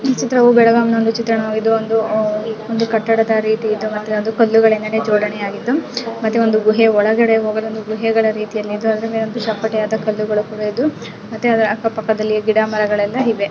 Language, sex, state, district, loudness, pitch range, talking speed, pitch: Kannada, female, Karnataka, Belgaum, -16 LUFS, 215-225 Hz, 135 wpm, 220 Hz